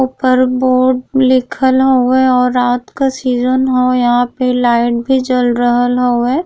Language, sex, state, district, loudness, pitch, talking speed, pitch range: Bhojpuri, female, Uttar Pradesh, Gorakhpur, -12 LUFS, 255 Hz, 150 wpm, 245-260 Hz